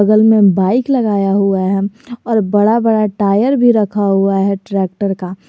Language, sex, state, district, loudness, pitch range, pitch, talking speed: Hindi, male, Jharkhand, Garhwa, -13 LUFS, 195-220 Hz, 205 Hz, 175 wpm